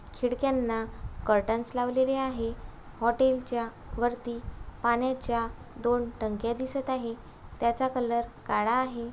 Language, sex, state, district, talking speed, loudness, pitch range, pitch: Marathi, female, Maharashtra, Aurangabad, 110 wpm, -30 LUFS, 235-255 Hz, 240 Hz